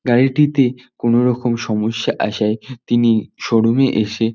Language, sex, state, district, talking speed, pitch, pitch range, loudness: Bengali, male, West Bengal, North 24 Parganas, 110 wpm, 120 Hz, 110-125 Hz, -17 LUFS